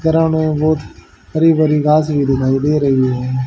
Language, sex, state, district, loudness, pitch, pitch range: Hindi, male, Haryana, Jhajjar, -15 LUFS, 150 Hz, 130-155 Hz